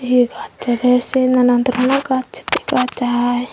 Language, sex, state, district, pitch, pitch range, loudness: Chakma, female, Tripura, Dhalai, 250 Hz, 245-255 Hz, -17 LUFS